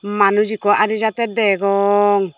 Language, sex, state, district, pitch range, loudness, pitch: Chakma, female, Tripura, Dhalai, 200-215 Hz, -16 LUFS, 205 Hz